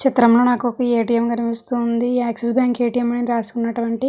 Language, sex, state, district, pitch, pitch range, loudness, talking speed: Telugu, female, Andhra Pradesh, Srikakulam, 240 Hz, 235-245 Hz, -19 LUFS, 160 wpm